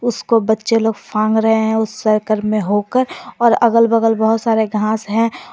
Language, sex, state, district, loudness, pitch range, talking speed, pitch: Hindi, female, Jharkhand, Garhwa, -16 LUFS, 215-230 Hz, 195 wpm, 220 Hz